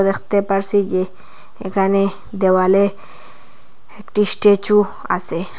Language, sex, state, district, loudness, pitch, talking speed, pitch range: Bengali, female, Assam, Hailakandi, -15 LUFS, 195 Hz, 85 wpm, 190-205 Hz